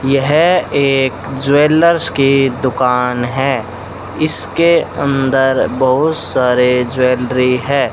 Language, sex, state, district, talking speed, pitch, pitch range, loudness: Hindi, male, Rajasthan, Bikaner, 90 wpm, 135 Hz, 125-140 Hz, -13 LUFS